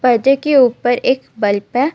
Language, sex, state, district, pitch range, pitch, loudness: Hindi, female, Jharkhand, Ranchi, 235-270 Hz, 250 Hz, -15 LUFS